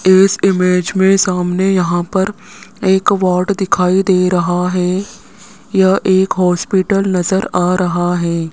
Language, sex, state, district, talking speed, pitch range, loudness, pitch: Hindi, male, Rajasthan, Jaipur, 135 wpm, 180-195 Hz, -14 LUFS, 190 Hz